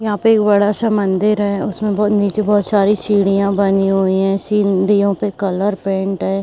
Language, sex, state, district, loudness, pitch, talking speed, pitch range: Hindi, female, Uttar Pradesh, Jyotiba Phule Nagar, -15 LUFS, 200 Hz, 195 wpm, 195-210 Hz